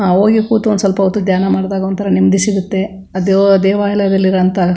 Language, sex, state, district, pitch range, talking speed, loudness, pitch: Kannada, female, Karnataka, Chamarajanagar, 190-200 Hz, 190 wpm, -13 LUFS, 195 Hz